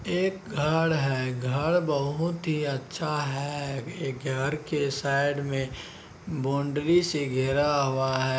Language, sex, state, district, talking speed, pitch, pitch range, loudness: Hindi, male, Bihar, Araria, 130 wpm, 145 Hz, 135-155 Hz, -27 LUFS